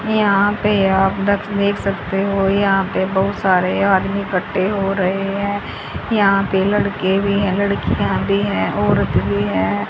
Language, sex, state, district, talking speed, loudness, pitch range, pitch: Hindi, female, Haryana, Charkhi Dadri, 165 wpm, -17 LUFS, 190-200 Hz, 195 Hz